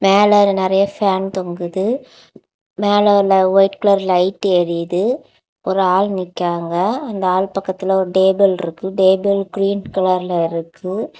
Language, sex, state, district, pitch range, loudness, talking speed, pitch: Tamil, female, Tamil Nadu, Kanyakumari, 185-200 Hz, -16 LUFS, 120 wpm, 190 Hz